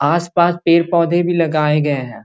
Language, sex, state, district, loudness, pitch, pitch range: Magahi, male, Bihar, Gaya, -15 LUFS, 170 Hz, 150-170 Hz